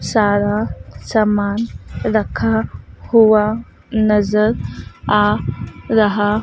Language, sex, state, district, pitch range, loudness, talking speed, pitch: Hindi, female, Madhya Pradesh, Dhar, 205-215 Hz, -17 LUFS, 65 wpm, 210 Hz